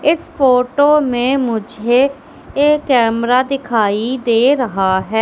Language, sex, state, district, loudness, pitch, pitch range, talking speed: Hindi, female, Madhya Pradesh, Katni, -14 LUFS, 250 Hz, 230-275 Hz, 115 wpm